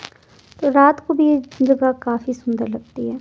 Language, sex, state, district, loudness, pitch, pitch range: Hindi, female, Himachal Pradesh, Shimla, -18 LUFS, 260 Hz, 235-285 Hz